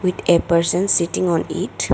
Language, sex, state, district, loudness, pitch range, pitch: English, female, Arunachal Pradesh, Lower Dibang Valley, -18 LUFS, 170-185 Hz, 170 Hz